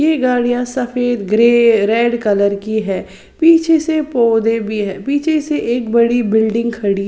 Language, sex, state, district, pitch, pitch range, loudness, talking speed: Hindi, female, Odisha, Sambalpur, 235 Hz, 220-255 Hz, -15 LUFS, 160 wpm